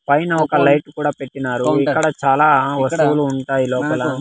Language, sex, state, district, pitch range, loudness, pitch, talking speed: Telugu, male, Andhra Pradesh, Sri Satya Sai, 135-150 Hz, -17 LUFS, 140 Hz, 140 wpm